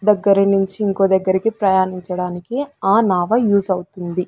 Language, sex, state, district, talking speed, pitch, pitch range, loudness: Telugu, female, Andhra Pradesh, Sri Satya Sai, 125 wpm, 195 Hz, 185-205 Hz, -17 LUFS